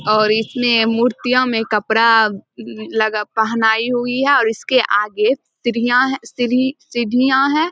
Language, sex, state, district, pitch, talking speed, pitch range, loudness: Hindi, female, Bihar, Samastipur, 230 Hz, 130 wpm, 220-255 Hz, -16 LUFS